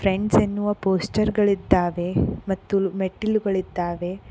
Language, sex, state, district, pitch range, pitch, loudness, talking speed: Kannada, female, Karnataka, Koppal, 185-205 Hz, 195 Hz, -23 LUFS, 85 wpm